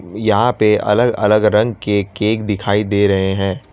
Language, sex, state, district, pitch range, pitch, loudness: Hindi, male, Gujarat, Valsad, 100-110 Hz, 105 Hz, -15 LUFS